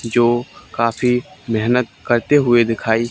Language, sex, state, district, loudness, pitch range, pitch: Hindi, male, Haryana, Charkhi Dadri, -17 LUFS, 115-125 Hz, 120 Hz